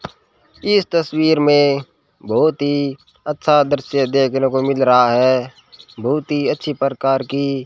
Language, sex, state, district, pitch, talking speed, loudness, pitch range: Hindi, male, Rajasthan, Bikaner, 140 Hz, 140 wpm, -17 LUFS, 135-150 Hz